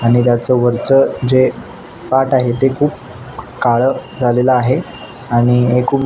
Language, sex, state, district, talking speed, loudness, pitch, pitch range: Marathi, male, Maharashtra, Nagpur, 140 wpm, -14 LUFS, 125 Hz, 120-130 Hz